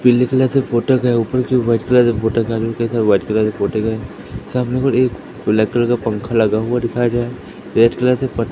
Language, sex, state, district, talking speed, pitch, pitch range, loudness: Hindi, male, Madhya Pradesh, Katni, 245 wpm, 120 Hz, 110-125 Hz, -17 LUFS